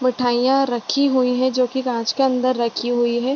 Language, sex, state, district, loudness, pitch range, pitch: Hindi, female, Bihar, Gopalganj, -19 LUFS, 240-260 Hz, 255 Hz